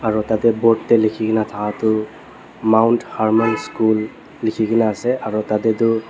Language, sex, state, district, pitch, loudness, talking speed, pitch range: Nagamese, male, Nagaland, Dimapur, 110 Hz, -18 LUFS, 145 wpm, 110-115 Hz